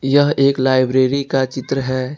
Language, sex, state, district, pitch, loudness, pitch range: Hindi, male, Jharkhand, Ranchi, 135 Hz, -16 LUFS, 130-140 Hz